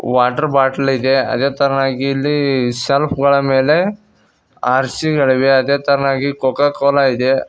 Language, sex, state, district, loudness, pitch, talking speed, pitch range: Kannada, male, Karnataka, Koppal, -15 LUFS, 135 Hz, 135 wpm, 130-140 Hz